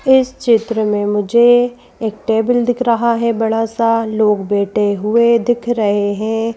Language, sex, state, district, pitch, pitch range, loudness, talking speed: Hindi, female, Madhya Pradesh, Bhopal, 230 Hz, 215-240 Hz, -15 LUFS, 155 wpm